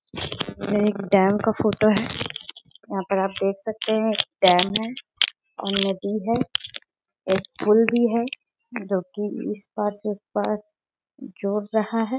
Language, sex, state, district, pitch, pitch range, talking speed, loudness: Hindi, female, Bihar, Gaya, 210 Hz, 200-225 Hz, 155 wpm, -23 LUFS